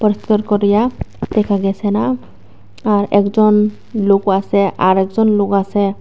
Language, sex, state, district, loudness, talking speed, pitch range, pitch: Bengali, female, Tripura, West Tripura, -15 LUFS, 110 wpm, 195-210 Hz, 205 Hz